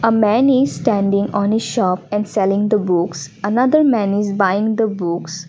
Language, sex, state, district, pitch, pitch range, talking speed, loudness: English, female, Assam, Kamrup Metropolitan, 205 Hz, 190-225 Hz, 195 wpm, -17 LUFS